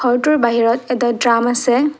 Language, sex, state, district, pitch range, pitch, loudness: Assamese, female, Assam, Kamrup Metropolitan, 235-255 Hz, 245 Hz, -15 LUFS